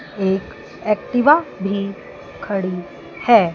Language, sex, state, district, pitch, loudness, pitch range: Hindi, female, Chandigarh, Chandigarh, 200 Hz, -19 LUFS, 190-235 Hz